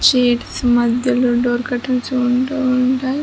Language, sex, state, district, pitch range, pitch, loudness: Telugu, female, Andhra Pradesh, Chittoor, 245-255 Hz, 250 Hz, -17 LUFS